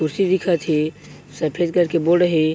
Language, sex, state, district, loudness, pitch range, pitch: Chhattisgarhi, male, Chhattisgarh, Bilaspur, -19 LUFS, 155-175 Hz, 165 Hz